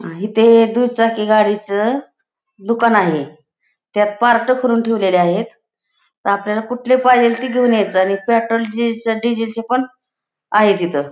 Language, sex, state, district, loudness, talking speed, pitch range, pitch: Marathi, female, Maharashtra, Pune, -15 LUFS, 130 wpm, 205-240 Hz, 225 Hz